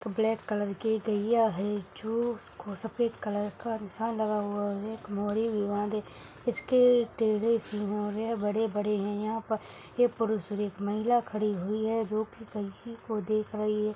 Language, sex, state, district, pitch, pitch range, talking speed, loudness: Hindi, female, Rajasthan, Churu, 215 Hz, 205-225 Hz, 165 wpm, -30 LUFS